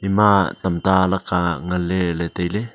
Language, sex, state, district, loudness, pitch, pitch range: Wancho, male, Arunachal Pradesh, Longding, -19 LUFS, 90 Hz, 90-95 Hz